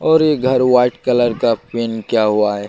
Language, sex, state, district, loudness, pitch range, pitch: Hindi, male, Bihar, Katihar, -15 LUFS, 110-125 Hz, 120 Hz